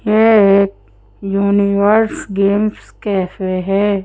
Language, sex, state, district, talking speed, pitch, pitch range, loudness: Hindi, female, Madhya Pradesh, Bhopal, 90 wpm, 200 Hz, 190-205 Hz, -14 LUFS